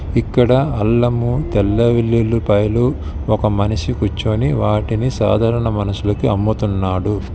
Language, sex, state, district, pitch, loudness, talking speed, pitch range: Telugu, male, Telangana, Hyderabad, 110 Hz, -17 LUFS, 90 wpm, 105-120 Hz